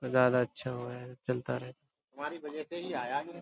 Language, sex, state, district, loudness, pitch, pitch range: Hindi, male, Uttar Pradesh, Budaun, -35 LUFS, 130 Hz, 125-150 Hz